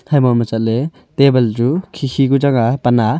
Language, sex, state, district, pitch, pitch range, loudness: Wancho, male, Arunachal Pradesh, Longding, 130 Hz, 120-140 Hz, -15 LUFS